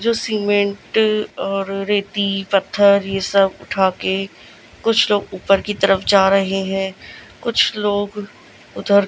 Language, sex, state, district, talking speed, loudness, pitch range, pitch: Hindi, female, Gujarat, Gandhinagar, 130 wpm, -18 LUFS, 195-205 Hz, 200 Hz